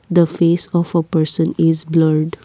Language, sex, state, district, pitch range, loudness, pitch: English, female, Assam, Kamrup Metropolitan, 160-170 Hz, -16 LUFS, 165 Hz